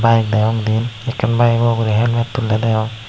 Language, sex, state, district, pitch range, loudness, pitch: Chakma, male, Tripura, Unakoti, 110-115 Hz, -16 LUFS, 115 Hz